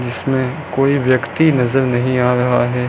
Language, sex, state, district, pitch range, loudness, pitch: Hindi, male, Rajasthan, Bikaner, 125-135 Hz, -16 LUFS, 130 Hz